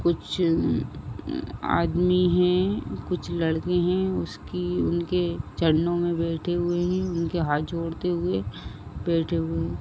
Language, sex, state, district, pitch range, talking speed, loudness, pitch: Hindi, female, Uttar Pradesh, Ghazipur, 155-180 Hz, 135 wpm, -25 LUFS, 170 Hz